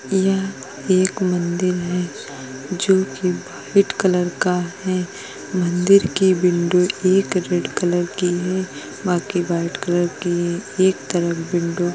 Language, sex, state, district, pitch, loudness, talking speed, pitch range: Hindi, female, Uttar Pradesh, Etah, 180 Hz, -20 LUFS, 125 wpm, 175-185 Hz